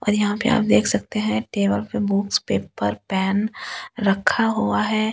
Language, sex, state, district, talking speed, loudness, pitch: Hindi, female, Delhi, New Delhi, 185 wpm, -21 LUFS, 200 Hz